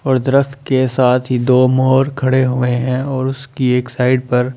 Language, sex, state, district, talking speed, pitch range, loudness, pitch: Hindi, male, Delhi, New Delhi, 210 wpm, 125-130 Hz, -15 LUFS, 130 Hz